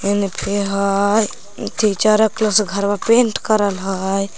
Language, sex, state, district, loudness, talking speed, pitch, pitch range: Magahi, female, Jharkhand, Palamu, -17 LUFS, 150 wpm, 200 Hz, 195-215 Hz